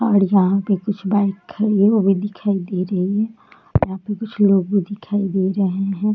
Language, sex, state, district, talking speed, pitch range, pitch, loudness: Hindi, female, Bihar, Darbhanga, 175 wpm, 195-205 Hz, 200 Hz, -19 LUFS